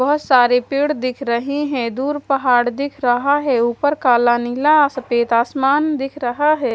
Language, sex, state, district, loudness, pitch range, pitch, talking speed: Hindi, female, Haryana, Charkhi Dadri, -17 LUFS, 245-290 Hz, 270 Hz, 170 wpm